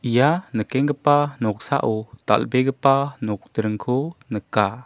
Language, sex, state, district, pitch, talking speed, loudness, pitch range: Garo, male, Meghalaya, South Garo Hills, 125 Hz, 75 wpm, -22 LUFS, 110-140 Hz